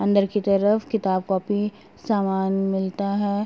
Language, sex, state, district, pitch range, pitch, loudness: Hindi, female, Uttar Pradesh, Gorakhpur, 195-205 Hz, 200 Hz, -23 LUFS